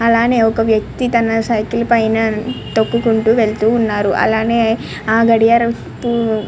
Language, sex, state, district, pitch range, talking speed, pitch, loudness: Telugu, female, Andhra Pradesh, Srikakulam, 220-235 Hz, 110 wpm, 225 Hz, -15 LUFS